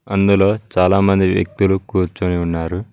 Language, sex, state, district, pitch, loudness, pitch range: Telugu, male, Telangana, Mahabubabad, 95 Hz, -16 LUFS, 90-100 Hz